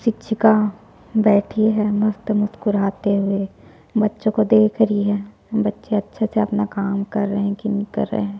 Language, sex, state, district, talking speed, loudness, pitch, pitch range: Hindi, female, Chhattisgarh, Jashpur, 170 wpm, -20 LUFS, 210 Hz, 200-215 Hz